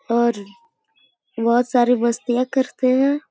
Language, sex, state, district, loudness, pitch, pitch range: Hindi, female, Uttar Pradesh, Gorakhpur, -19 LUFS, 250 Hz, 235-275 Hz